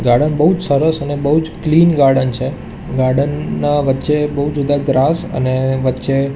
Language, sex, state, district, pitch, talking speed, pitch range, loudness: Gujarati, male, Gujarat, Gandhinagar, 140 Hz, 170 wpm, 130-150 Hz, -15 LUFS